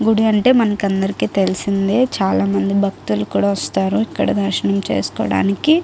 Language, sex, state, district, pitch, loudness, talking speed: Telugu, female, Andhra Pradesh, Guntur, 190 Hz, -17 LUFS, 135 wpm